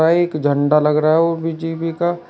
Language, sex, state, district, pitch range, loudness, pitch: Hindi, male, Uttar Pradesh, Shamli, 150-165 Hz, -17 LUFS, 165 Hz